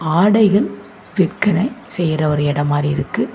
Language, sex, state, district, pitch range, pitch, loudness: Tamil, female, Tamil Nadu, Namakkal, 150-205 Hz, 175 Hz, -17 LUFS